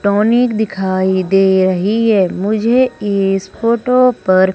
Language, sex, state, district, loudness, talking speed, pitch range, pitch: Hindi, female, Madhya Pradesh, Umaria, -14 LUFS, 120 wpm, 190-230 Hz, 200 Hz